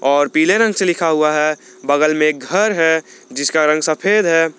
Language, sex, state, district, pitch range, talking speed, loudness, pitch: Hindi, male, Jharkhand, Garhwa, 150-165 Hz, 195 wpm, -15 LUFS, 155 Hz